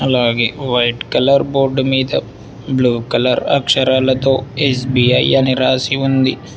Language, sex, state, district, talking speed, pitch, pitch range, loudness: Telugu, male, Telangana, Hyderabad, 110 wpm, 130 Hz, 125-135 Hz, -14 LUFS